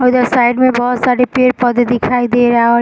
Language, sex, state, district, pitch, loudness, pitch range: Hindi, female, Bihar, East Champaran, 245 Hz, -12 LUFS, 240-250 Hz